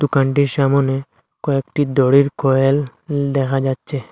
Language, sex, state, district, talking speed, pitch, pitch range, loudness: Bengali, male, Assam, Hailakandi, 100 wpm, 135 Hz, 135-140 Hz, -17 LUFS